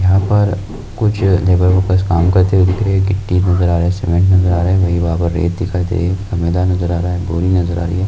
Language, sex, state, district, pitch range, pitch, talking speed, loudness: Hindi, male, Rajasthan, Nagaur, 85-95 Hz, 90 Hz, 195 wpm, -14 LUFS